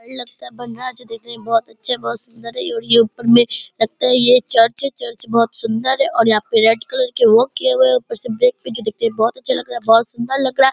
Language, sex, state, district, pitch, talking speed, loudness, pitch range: Hindi, female, Bihar, Purnia, 240 Hz, 285 wpm, -16 LUFS, 230-265 Hz